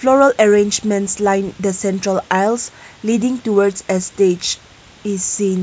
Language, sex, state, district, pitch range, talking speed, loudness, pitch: English, female, Nagaland, Kohima, 190-215 Hz, 130 wpm, -17 LUFS, 200 Hz